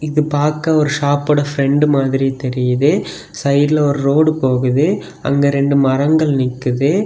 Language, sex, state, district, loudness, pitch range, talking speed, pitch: Tamil, male, Tamil Nadu, Kanyakumari, -15 LUFS, 135-150 Hz, 125 wpm, 140 Hz